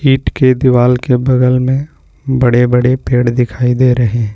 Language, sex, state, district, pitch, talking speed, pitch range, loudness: Hindi, male, Jharkhand, Ranchi, 125 Hz, 180 wpm, 125-130 Hz, -12 LUFS